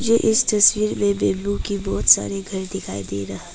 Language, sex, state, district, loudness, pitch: Hindi, female, Arunachal Pradesh, Papum Pare, -19 LUFS, 195 Hz